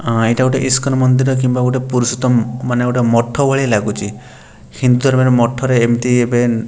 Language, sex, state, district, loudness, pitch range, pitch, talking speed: Odia, male, Odisha, Sambalpur, -14 LUFS, 120-130 Hz, 125 Hz, 170 wpm